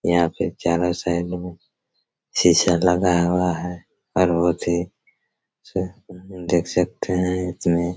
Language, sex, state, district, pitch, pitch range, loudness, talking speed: Hindi, male, Chhattisgarh, Raigarh, 90 Hz, 85-90 Hz, -21 LUFS, 120 wpm